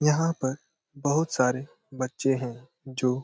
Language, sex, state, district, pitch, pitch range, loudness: Hindi, male, Jharkhand, Sahebganj, 130 Hz, 130-150 Hz, -28 LUFS